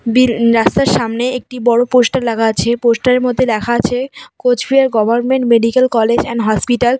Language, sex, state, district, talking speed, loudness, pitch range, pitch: Bengali, female, West Bengal, Cooch Behar, 170 wpm, -13 LUFS, 230-250 Hz, 240 Hz